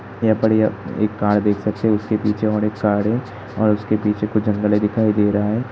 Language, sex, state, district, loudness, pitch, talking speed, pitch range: Hindi, male, Uttar Pradesh, Hamirpur, -19 LUFS, 105 Hz, 250 wpm, 105-110 Hz